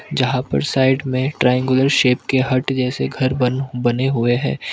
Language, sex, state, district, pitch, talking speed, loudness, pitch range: Hindi, male, Arunachal Pradesh, Lower Dibang Valley, 130 Hz, 175 wpm, -18 LUFS, 125-130 Hz